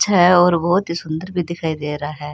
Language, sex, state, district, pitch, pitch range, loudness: Rajasthani, female, Rajasthan, Churu, 170 Hz, 155-175 Hz, -18 LUFS